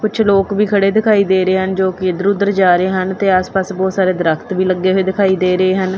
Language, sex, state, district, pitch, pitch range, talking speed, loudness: Punjabi, female, Punjab, Kapurthala, 190 Hz, 185-200 Hz, 270 wpm, -14 LUFS